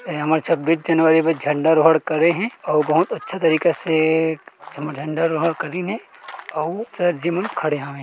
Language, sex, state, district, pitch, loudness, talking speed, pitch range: Chhattisgarhi, male, Chhattisgarh, Korba, 160 Hz, -19 LUFS, 185 wpm, 155-170 Hz